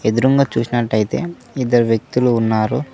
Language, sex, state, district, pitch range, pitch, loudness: Telugu, male, Telangana, Mahabubabad, 115-130 Hz, 120 Hz, -17 LUFS